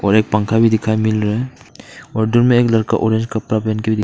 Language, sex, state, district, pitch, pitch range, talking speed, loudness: Hindi, male, Arunachal Pradesh, Papum Pare, 110 Hz, 110-115 Hz, 265 wpm, -16 LUFS